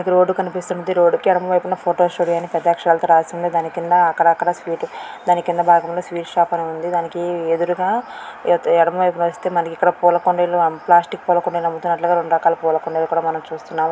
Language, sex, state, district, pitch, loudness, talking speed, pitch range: Telugu, female, Andhra Pradesh, Srikakulam, 175 Hz, -18 LUFS, 165 wpm, 170-175 Hz